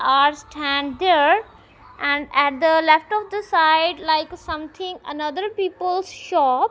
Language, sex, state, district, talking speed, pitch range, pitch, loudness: English, female, Punjab, Kapurthala, 145 wpm, 295-370 Hz, 320 Hz, -20 LUFS